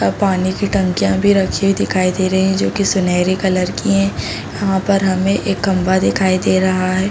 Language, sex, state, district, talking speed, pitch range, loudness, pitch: Hindi, female, Uttar Pradesh, Deoria, 210 wpm, 185-195 Hz, -16 LUFS, 185 Hz